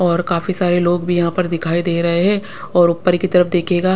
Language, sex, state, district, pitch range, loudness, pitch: Hindi, female, Punjab, Pathankot, 170-180 Hz, -16 LUFS, 175 Hz